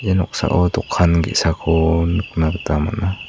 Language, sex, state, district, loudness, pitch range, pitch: Garo, male, Meghalaya, South Garo Hills, -18 LUFS, 80-95 Hz, 85 Hz